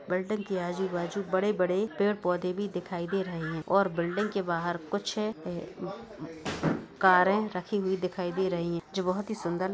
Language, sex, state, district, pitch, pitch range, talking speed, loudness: Hindi, male, Bihar, Bhagalpur, 185 Hz, 175-200 Hz, 180 wpm, -30 LUFS